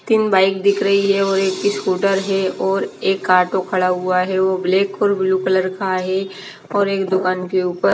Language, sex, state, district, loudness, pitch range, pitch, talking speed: Hindi, female, Haryana, Rohtak, -18 LUFS, 185-195 Hz, 190 Hz, 220 wpm